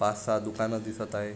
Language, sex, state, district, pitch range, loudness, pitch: Marathi, male, Maharashtra, Sindhudurg, 105-110 Hz, -31 LUFS, 110 Hz